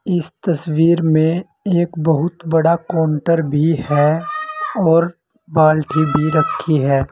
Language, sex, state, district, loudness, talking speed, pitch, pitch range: Hindi, male, Uttar Pradesh, Saharanpur, -16 LUFS, 120 wpm, 160 Hz, 155-170 Hz